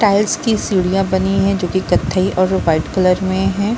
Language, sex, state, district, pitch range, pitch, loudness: Hindi, female, Bihar, Saran, 185-195 Hz, 190 Hz, -16 LUFS